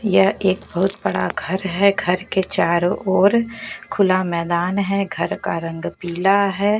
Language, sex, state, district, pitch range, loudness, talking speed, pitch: Hindi, female, Bihar, West Champaran, 175-200 Hz, -19 LUFS, 160 wpm, 190 Hz